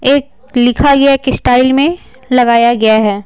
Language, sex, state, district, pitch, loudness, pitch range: Hindi, female, Bihar, Patna, 255 Hz, -10 LUFS, 240-275 Hz